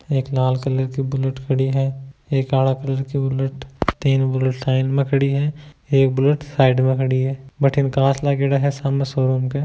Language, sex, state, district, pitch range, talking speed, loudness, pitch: Hindi, male, Rajasthan, Nagaur, 130-140 Hz, 205 wpm, -20 LUFS, 135 Hz